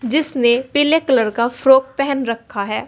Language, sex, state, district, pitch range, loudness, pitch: Hindi, female, Uttar Pradesh, Saharanpur, 235-280 Hz, -16 LUFS, 265 Hz